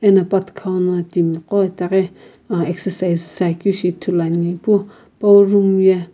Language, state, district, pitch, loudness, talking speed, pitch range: Sumi, Nagaland, Kohima, 185 Hz, -17 LUFS, 135 wpm, 175-195 Hz